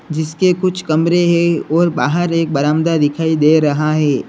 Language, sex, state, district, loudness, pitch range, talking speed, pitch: Hindi, male, Uttar Pradesh, Lalitpur, -15 LUFS, 150-170 Hz, 170 wpm, 160 Hz